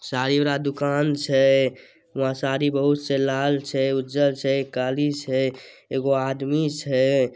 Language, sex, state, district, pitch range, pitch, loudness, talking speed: Maithili, male, Bihar, Samastipur, 135-145 Hz, 135 Hz, -22 LUFS, 140 wpm